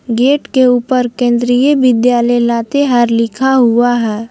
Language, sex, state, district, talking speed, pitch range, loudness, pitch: Hindi, female, Jharkhand, Palamu, 125 wpm, 235-260 Hz, -12 LUFS, 245 Hz